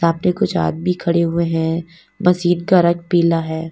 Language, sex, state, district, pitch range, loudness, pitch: Hindi, female, Uttar Pradesh, Lalitpur, 165-175 Hz, -17 LUFS, 170 Hz